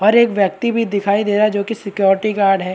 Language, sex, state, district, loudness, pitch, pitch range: Hindi, male, Chhattisgarh, Bastar, -16 LUFS, 205 Hz, 195-215 Hz